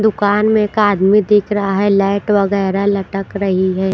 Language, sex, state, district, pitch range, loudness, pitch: Hindi, female, Punjab, Pathankot, 195-210 Hz, -14 LUFS, 200 Hz